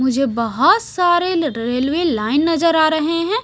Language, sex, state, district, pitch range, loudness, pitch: Hindi, female, Maharashtra, Mumbai Suburban, 260-345 Hz, -17 LUFS, 315 Hz